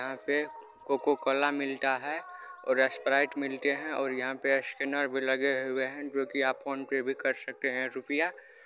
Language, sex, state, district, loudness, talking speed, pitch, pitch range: Hindi, male, Bihar, Supaul, -30 LUFS, 195 wpm, 135 Hz, 135-145 Hz